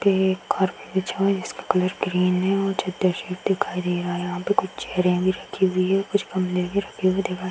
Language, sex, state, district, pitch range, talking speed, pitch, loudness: Hindi, female, Uttar Pradesh, Hamirpur, 180-195 Hz, 205 wpm, 185 Hz, -23 LUFS